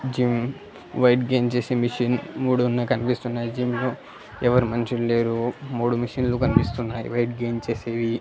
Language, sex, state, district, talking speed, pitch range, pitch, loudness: Telugu, male, Andhra Pradesh, Annamaya, 145 wpm, 120-125 Hz, 120 Hz, -23 LUFS